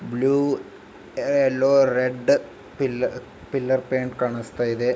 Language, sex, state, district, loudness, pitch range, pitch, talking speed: Kannada, male, Karnataka, Bijapur, -22 LUFS, 125-135 Hz, 130 Hz, 95 wpm